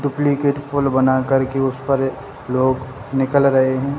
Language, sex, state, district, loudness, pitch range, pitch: Hindi, male, Bihar, Samastipur, -18 LUFS, 130-140 Hz, 135 Hz